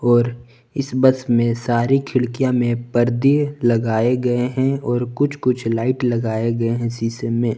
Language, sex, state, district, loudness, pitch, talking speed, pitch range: Hindi, male, Jharkhand, Palamu, -19 LUFS, 120 Hz, 160 wpm, 115-130 Hz